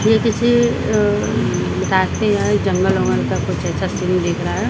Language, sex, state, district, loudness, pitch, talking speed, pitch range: Hindi, female, Maharashtra, Mumbai Suburban, -17 LUFS, 205 Hz, 165 wpm, 175-225 Hz